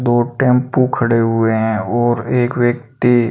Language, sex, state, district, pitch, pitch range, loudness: Hindi, male, Rajasthan, Bikaner, 120 Hz, 115-125 Hz, -15 LUFS